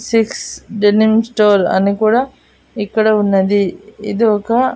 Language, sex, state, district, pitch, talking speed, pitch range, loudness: Telugu, female, Andhra Pradesh, Annamaya, 215 Hz, 115 wpm, 205-225 Hz, -14 LUFS